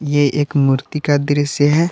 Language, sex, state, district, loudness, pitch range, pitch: Hindi, male, Jharkhand, Palamu, -16 LUFS, 145-150 Hz, 145 Hz